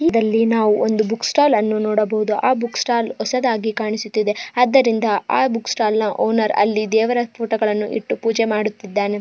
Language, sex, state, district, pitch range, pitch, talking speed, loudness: Kannada, female, Karnataka, Bijapur, 215-230 Hz, 220 Hz, 150 wpm, -18 LUFS